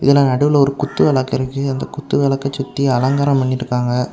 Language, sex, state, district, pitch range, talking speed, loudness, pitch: Tamil, male, Tamil Nadu, Kanyakumari, 130-140 Hz, 160 wpm, -17 LUFS, 135 Hz